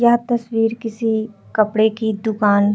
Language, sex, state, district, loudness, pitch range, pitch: Hindi, female, Uttar Pradesh, Hamirpur, -19 LUFS, 215-230 Hz, 220 Hz